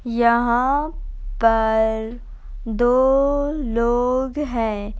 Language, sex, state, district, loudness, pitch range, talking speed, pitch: Hindi, female, Uttar Pradesh, Etah, -20 LUFS, 225-265 Hz, 60 wpm, 240 Hz